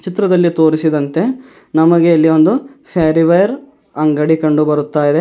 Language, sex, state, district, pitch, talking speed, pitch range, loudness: Kannada, male, Karnataka, Bidar, 160 Hz, 115 wpm, 155-185 Hz, -13 LUFS